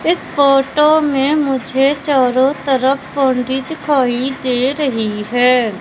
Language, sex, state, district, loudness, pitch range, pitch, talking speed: Hindi, female, Madhya Pradesh, Katni, -15 LUFS, 255-285 Hz, 270 Hz, 115 wpm